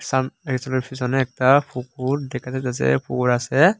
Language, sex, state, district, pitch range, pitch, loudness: Bengali, male, Tripura, Unakoti, 125-135 Hz, 130 Hz, -21 LUFS